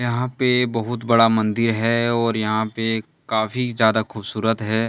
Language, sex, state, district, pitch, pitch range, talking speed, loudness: Hindi, male, Jharkhand, Deoghar, 115 Hz, 110-120 Hz, 160 wpm, -20 LUFS